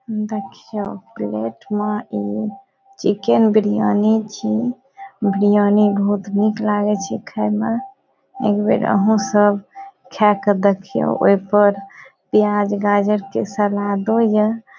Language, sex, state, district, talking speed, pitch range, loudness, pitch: Maithili, female, Bihar, Saharsa, 115 wpm, 200-220 Hz, -18 LUFS, 210 Hz